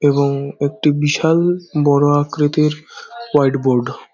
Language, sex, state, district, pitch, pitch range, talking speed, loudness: Bengali, male, West Bengal, Dakshin Dinajpur, 145 Hz, 140-150 Hz, 100 wpm, -16 LUFS